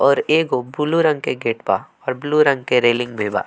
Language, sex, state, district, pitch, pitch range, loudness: Bhojpuri, male, Bihar, Muzaffarpur, 130 Hz, 120-150 Hz, -18 LUFS